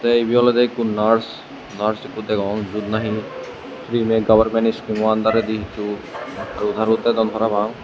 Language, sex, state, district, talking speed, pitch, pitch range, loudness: Chakma, male, Tripura, West Tripura, 145 wpm, 110 Hz, 105-115 Hz, -19 LUFS